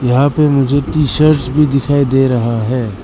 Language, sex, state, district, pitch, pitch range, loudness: Hindi, male, Arunachal Pradesh, Lower Dibang Valley, 140 Hz, 125-150 Hz, -13 LUFS